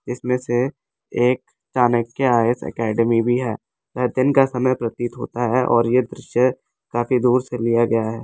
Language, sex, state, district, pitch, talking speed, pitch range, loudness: Hindi, male, Delhi, New Delhi, 120 Hz, 175 wpm, 115-125 Hz, -20 LUFS